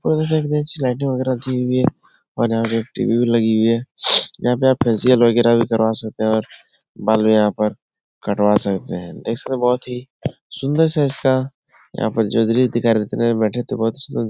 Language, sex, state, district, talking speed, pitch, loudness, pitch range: Hindi, male, Bihar, Supaul, 165 wpm, 120 Hz, -18 LUFS, 110-130 Hz